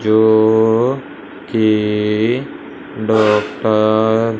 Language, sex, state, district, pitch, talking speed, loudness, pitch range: Hindi, male, Punjab, Fazilka, 110 Hz, 55 wpm, -15 LUFS, 110-115 Hz